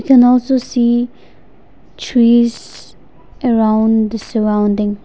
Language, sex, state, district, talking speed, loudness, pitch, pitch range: English, female, Nagaland, Dimapur, 85 wpm, -13 LUFS, 235 Hz, 215-245 Hz